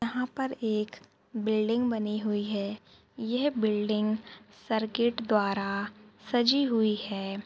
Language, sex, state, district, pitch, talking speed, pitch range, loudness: Hindi, female, Uttar Pradesh, Budaun, 215 Hz, 115 wpm, 210-235 Hz, -29 LUFS